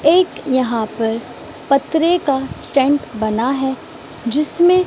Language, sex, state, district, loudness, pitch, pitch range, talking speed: Hindi, female, Maharashtra, Mumbai Suburban, -17 LUFS, 275 Hz, 235-315 Hz, 110 wpm